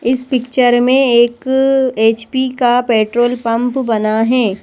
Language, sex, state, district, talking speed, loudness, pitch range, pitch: Hindi, female, Madhya Pradesh, Bhopal, 115 wpm, -13 LUFS, 230-255 Hz, 245 Hz